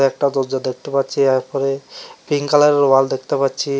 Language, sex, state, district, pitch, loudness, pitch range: Bengali, male, Tripura, West Tripura, 135 Hz, -17 LUFS, 135-140 Hz